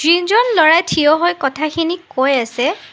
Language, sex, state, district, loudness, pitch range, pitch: Assamese, female, Assam, Sonitpur, -14 LUFS, 275-345 Hz, 320 Hz